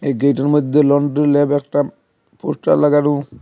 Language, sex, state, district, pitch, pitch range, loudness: Bengali, male, Assam, Hailakandi, 145 Hz, 140-145 Hz, -16 LUFS